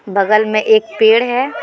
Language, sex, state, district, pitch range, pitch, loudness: Hindi, female, Jharkhand, Deoghar, 215-240 Hz, 220 Hz, -13 LUFS